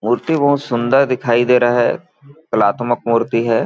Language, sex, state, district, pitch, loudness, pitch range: Hindi, male, Chhattisgarh, Balrampur, 120 Hz, -16 LUFS, 115-135 Hz